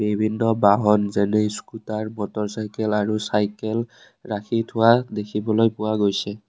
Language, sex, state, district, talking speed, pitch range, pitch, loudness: Assamese, male, Assam, Kamrup Metropolitan, 120 wpm, 105-110 Hz, 105 Hz, -22 LUFS